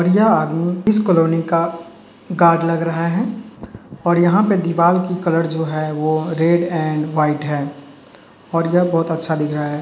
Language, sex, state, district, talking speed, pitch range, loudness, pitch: Hindi, male, Uttar Pradesh, Hamirpur, 175 wpm, 155-180 Hz, -17 LUFS, 165 Hz